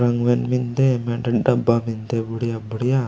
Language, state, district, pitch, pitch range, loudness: Gondi, Chhattisgarh, Sukma, 120 Hz, 115-125 Hz, -21 LUFS